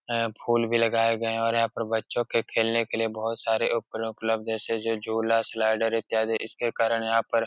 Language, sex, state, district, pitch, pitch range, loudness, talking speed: Hindi, male, Uttar Pradesh, Etah, 115 Hz, 110-115 Hz, -26 LUFS, 225 wpm